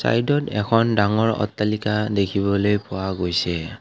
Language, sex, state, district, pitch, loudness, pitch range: Assamese, male, Assam, Kamrup Metropolitan, 105 Hz, -21 LUFS, 100-110 Hz